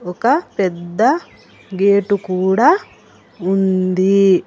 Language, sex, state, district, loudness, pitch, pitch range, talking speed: Telugu, female, Telangana, Hyderabad, -16 LUFS, 190 Hz, 185-205 Hz, 65 wpm